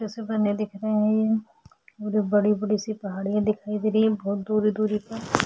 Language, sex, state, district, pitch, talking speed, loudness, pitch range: Hindi, female, Chhattisgarh, Sukma, 215 Hz, 200 wpm, -25 LUFS, 210-215 Hz